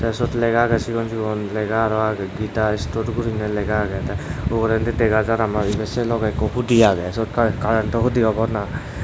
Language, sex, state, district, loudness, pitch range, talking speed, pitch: Chakma, male, Tripura, Dhalai, -20 LUFS, 105-115 Hz, 210 wpm, 110 Hz